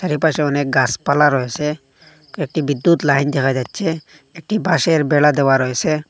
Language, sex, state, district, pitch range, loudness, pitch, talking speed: Bengali, male, Assam, Hailakandi, 140-160 Hz, -17 LUFS, 150 Hz, 150 wpm